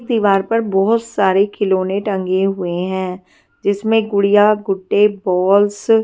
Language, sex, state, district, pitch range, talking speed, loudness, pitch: Hindi, female, Punjab, Fazilka, 190-210 Hz, 130 wpm, -16 LUFS, 200 Hz